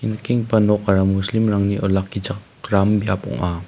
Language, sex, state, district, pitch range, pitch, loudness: Garo, male, Meghalaya, West Garo Hills, 95-110 Hz, 100 Hz, -19 LUFS